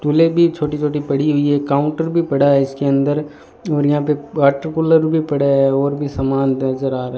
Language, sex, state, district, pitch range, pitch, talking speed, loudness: Hindi, male, Rajasthan, Bikaner, 140-150 Hz, 145 Hz, 235 wpm, -17 LUFS